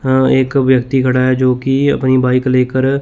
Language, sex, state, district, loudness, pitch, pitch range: Hindi, male, Chandigarh, Chandigarh, -13 LUFS, 130 Hz, 130-135 Hz